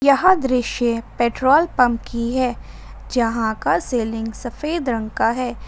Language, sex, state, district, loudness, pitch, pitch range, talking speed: Hindi, female, Jharkhand, Ranchi, -20 LUFS, 245 Hz, 230-260 Hz, 135 wpm